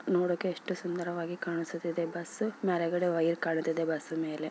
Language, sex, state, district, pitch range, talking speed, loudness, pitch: Kannada, female, Karnataka, Bellary, 165-180 Hz, 145 wpm, -32 LUFS, 170 Hz